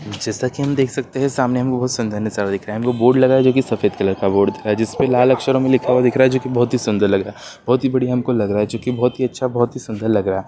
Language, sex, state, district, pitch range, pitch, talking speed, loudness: Bhojpuri, male, Bihar, Saran, 105-130 Hz, 125 Hz, 320 wpm, -18 LUFS